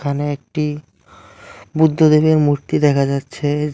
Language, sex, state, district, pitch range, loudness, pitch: Bengali, male, West Bengal, Cooch Behar, 145-155 Hz, -16 LUFS, 150 Hz